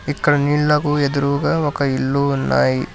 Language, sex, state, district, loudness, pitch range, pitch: Telugu, male, Telangana, Hyderabad, -18 LUFS, 135-145 Hz, 140 Hz